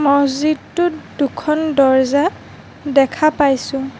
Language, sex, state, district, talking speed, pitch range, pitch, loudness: Assamese, female, Assam, Sonitpur, 75 wpm, 275-305 Hz, 285 Hz, -16 LUFS